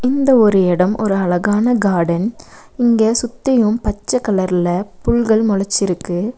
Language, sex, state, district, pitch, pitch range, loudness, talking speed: Tamil, female, Tamil Nadu, Nilgiris, 210 Hz, 185-235 Hz, -16 LUFS, 115 wpm